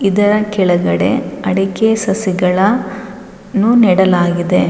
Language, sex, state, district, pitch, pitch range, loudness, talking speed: Kannada, female, Karnataka, Raichur, 195 Hz, 185-210 Hz, -13 LUFS, 75 wpm